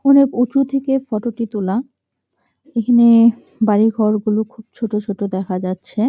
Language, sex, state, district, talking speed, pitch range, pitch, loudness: Bengali, female, West Bengal, Jalpaiguri, 140 wpm, 210-245 Hz, 225 Hz, -17 LUFS